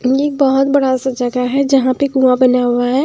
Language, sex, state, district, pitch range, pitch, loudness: Hindi, female, Bihar, Patna, 250-275 Hz, 260 Hz, -14 LUFS